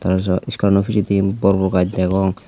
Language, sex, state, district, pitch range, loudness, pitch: Chakma, male, Tripura, Unakoti, 95-100 Hz, -17 LUFS, 95 Hz